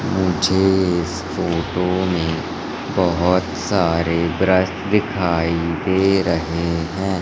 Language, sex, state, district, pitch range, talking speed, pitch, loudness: Hindi, male, Madhya Pradesh, Katni, 85-95 Hz, 90 wpm, 90 Hz, -19 LUFS